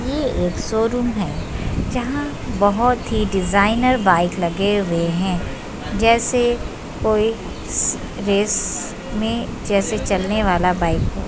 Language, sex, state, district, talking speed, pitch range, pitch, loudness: Hindi, female, Uttar Pradesh, Budaun, 105 wpm, 180-225 Hz, 200 Hz, -19 LUFS